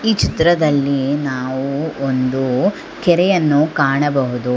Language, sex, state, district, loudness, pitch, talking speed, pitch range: Kannada, female, Karnataka, Bangalore, -16 LUFS, 140 Hz, 80 wpm, 130-160 Hz